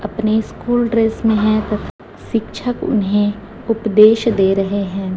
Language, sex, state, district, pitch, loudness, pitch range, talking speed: Hindi, female, Chhattisgarh, Raipur, 215 Hz, -16 LUFS, 205-225 Hz, 140 wpm